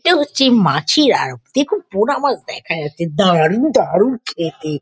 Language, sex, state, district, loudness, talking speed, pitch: Bengali, female, West Bengal, Kolkata, -16 LUFS, 160 wpm, 210 Hz